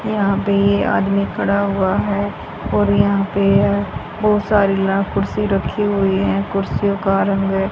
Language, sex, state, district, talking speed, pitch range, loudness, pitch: Hindi, female, Haryana, Charkhi Dadri, 155 wpm, 195-200 Hz, -17 LUFS, 200 Hz